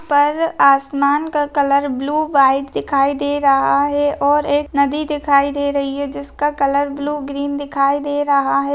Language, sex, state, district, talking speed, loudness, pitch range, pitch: Hindi, female, Rajasthan, Nagaur, 170 wpm, -17 LUFS, 280-290 Hz, 285 Hz